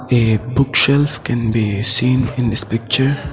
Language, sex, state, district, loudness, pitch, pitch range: English, male, Assam, Sonitpur, -15 LUFS, 120 Hz, 115-130 Hz